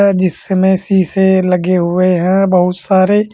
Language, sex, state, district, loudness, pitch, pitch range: Hindi, male, Uttar Pradesh, Saharanpur, -12 LUFS, 185 Hz, 180-190 Hz